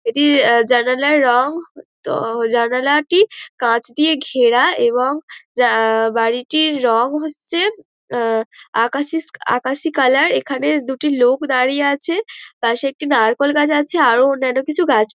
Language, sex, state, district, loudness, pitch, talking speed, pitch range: Bengali, female, West Bengal, Dakshin Dinajpur, -16 LUFS, 270 Hz, 120 wpm, 240-300 Hz